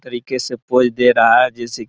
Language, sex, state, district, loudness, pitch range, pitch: Maithili, male, Bihar, Araria, -15 LUFS, 120-125 Hz, 125 Hz